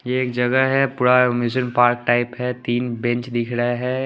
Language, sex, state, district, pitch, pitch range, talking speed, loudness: Hindi, male, Chandigarh, Chandigarh, 125 Hz, 120-125 Hz, 205 wpm, -19 LUFS